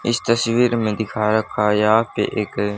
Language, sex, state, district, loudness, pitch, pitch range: Hindi, male, Haryana, Charkhi Dadri, -19 LUFS, 110 Hz, 105-115 Hz